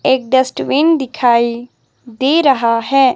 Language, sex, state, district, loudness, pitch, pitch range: Hindi, female, Himachal Pradesh, Shimla, -14 LUFS, 260 Hz, 235-275 Hz